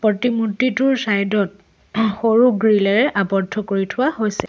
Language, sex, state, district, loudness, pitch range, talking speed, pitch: Assamese, female, Assam, Sonitpur, -18 LUFS, 200-245 Hz, 135 wpm, 215 Hz